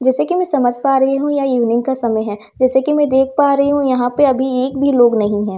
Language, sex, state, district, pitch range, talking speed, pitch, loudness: Hindi, female, Delhi, New Delhi, 245-280 Hz, 290 wpm, 265 Hz, -15 LUFS